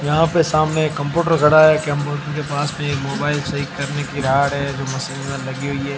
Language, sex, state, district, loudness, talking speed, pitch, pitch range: Hindi, male, Rajasthan, Barmer, -19 LUFS, 230 wpm, 145 Hz, 140-155 Hz